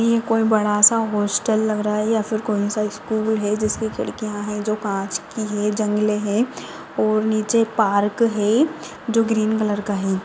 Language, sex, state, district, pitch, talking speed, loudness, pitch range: Hindi, female, Maharashtra, Dhule, 215 Hz, 175 wpm, -20 LUFS, 210-220 Hz